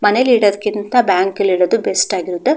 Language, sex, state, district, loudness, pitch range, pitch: Kannada, female, Karnataka, Mysore, -15 LUFS, 190-240 Hz, 205 Hz